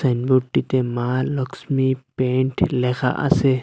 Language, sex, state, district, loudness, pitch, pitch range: Bengali, male, Assam, Hailakandi, -21 LUFS, 130 Hz, 125-135 Hz